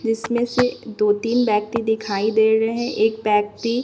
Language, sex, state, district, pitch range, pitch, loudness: Hindi, female, Bihar, Katihar, 215-235 Hz, 220 Hz, -20 LUFS